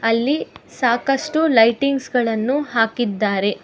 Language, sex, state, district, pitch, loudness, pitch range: Kannada, female, Karnataka, Bangalore, 240 Hz, -18 LUFS, 225-275 Hz